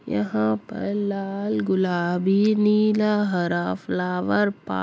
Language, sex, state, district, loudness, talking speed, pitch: Hindi, female, Bihar, Jahanabad, -23 LUFS, 110 wpm, 175 Hz